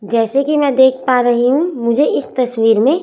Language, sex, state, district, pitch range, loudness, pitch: Hindi, female, Chhattisgarh, Raipur, 235-280 Hz, -14 LUFS, 255 Hz